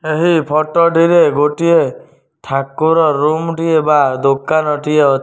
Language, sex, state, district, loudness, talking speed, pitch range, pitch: Odia, male, Odisha, Nuapada, -13 LUFS, 140 wpm, 145-165 Hz, 155 Hz